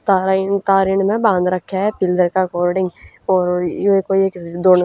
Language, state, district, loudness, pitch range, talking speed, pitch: Haryanvi, Haryana, Rohtak, -17 LUFS, 180-195 Hz, 175 wpm, 190 Hz